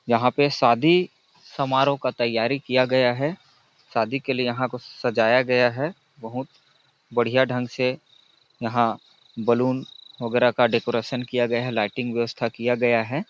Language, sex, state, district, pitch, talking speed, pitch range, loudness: Hindi, male, Chhattisgarh, Balrampur, 125 Hz, 155 wpm, 120-135 Hz, -23 LUFS